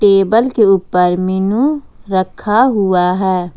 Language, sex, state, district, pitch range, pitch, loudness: Hindi, female, Jharkhand, Ranchi, 185-220 Hz, 195 Hz, -13 LUFS